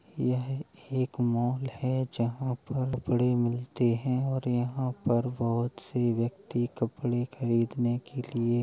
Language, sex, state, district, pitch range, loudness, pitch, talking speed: Hindi, male, Uttar Pradesh, Hamirpur, 120-130 Hz, -30 LUFS, 125 Hz, 140 wpm